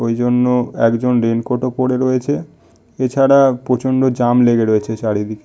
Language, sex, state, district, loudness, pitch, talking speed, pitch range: Bengali, male, West Bengal, Malda, -15 LUFS, 125 Hz, 155 wpm, 115-130 Hz